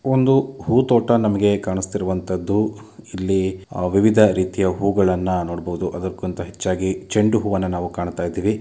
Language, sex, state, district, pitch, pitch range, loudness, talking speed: Kannada, male, Karnataka, Dakshina Kannada, 95 Hz, 90-105 Hz, -20 LUFS, 110 wpm